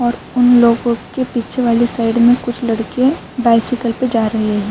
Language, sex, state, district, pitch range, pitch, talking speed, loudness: Urdu, female, Uttar Pradesh, Budaun, 230-245 Hz, 240 Hz, 180 wpm, -15 LUFS